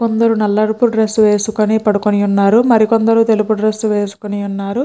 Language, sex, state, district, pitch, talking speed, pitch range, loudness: Telugu, female, Andhra Pradesh, Chittoor, 215 Hz, 150 wpm, 205-225 Hz, -14 LUFS